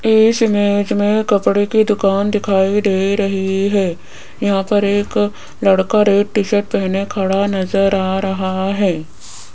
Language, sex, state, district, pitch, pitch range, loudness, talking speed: Hindi, female, Rajasthan, Jaipur, 200 Hz, 195-205 Hz, -16 LUFS, 145 wpm